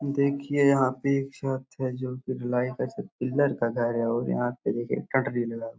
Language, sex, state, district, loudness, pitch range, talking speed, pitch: Hindi, male, Bihar, Supaul, -27 LUFS, 120-140 Hz, 240 wpm, 130 Hz